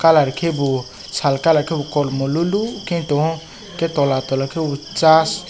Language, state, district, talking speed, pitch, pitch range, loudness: Kokborok, Tripura, West Tripura, 165 wpm, 155 Hz, 140-165 Hz, -18 LUFS